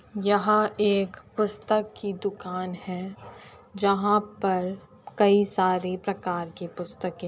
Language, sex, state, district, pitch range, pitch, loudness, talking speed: Hindi, female, Uttar Pradesh, Etah, 185-205 Hz, 200 Hz, -26 LUFS, 115 wpm